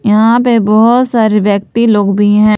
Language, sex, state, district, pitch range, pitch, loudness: Hindi, female, Jharkhand, Palamu, 210-230 Hz, 215 Hz, -10 LUFS